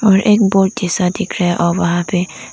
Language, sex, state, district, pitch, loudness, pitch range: Hindi, female, Arunachal Pradesh, Lower Dibang Valley, 185 Hz, -15 LUFS, 175-205 Hz